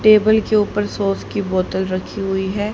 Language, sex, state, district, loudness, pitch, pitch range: Hindi, female, Haryana, Rohtak, -18 LUFS, 205 Hz, 190-210 Hz